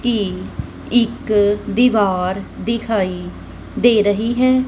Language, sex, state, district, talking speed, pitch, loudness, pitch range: Punjabi, female, Punjab, Kapurthala, 90 wpm, 210 Hz, -17 LUFS, 190-235 Hz